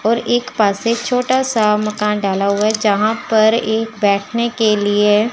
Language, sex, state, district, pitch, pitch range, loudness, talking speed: Hindi, female, Chandigarh, Chandigarh, 215 Hz, 210-235 Hz, -16 LUFS, 180 wpm